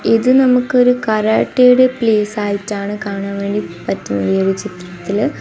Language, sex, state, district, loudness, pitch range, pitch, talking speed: Malayalam, female, Kerala, Kasaragod, -15 LUFS, 195-245 Hz, 210 Hz, 120 wpm